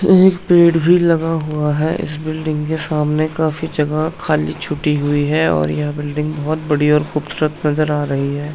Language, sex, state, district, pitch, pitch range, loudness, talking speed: Hindi, male, Uttarakhand, Tehri Garhwal, 155 Hz, 150-160 Hz, -17 LUFS, 190 wpm